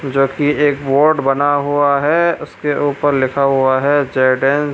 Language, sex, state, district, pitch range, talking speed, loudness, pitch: Hindi, male, Bihar, Supaul, 135-145 Hz, 175 wpm, -15 LUFS, 140 Hz